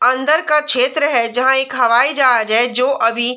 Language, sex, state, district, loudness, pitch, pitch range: Hindi, female, Chhattisgarh, Bilaspur, -14 LUFS, 255 Hz, 240-270 Hz